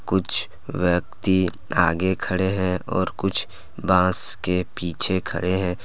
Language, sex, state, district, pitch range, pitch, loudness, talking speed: Hindi, male, Jharkhand, Deoghar, 90-95 Hz, 95 Hz, -20 LUFS, 125 wpm